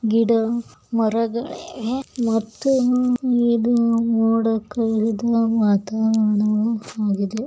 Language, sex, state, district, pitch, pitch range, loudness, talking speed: Kannada, female, Karnataka, Bijapur, 225 Hz, 220-235 Hz, -20 LUFS, 65 wpm